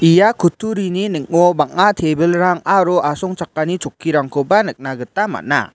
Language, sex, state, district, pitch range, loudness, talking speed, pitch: Garo, male, Meghalaya, West Garo Hills, 155-190 Hz, -16 LUFS, 115 wpm, 175 Hz